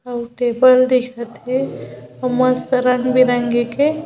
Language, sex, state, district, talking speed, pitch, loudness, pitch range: Hindi, female, Chhattisgarh, Bilaspur, 120 wpm, 250 Hz, -16 LUFS, 245-255 Hz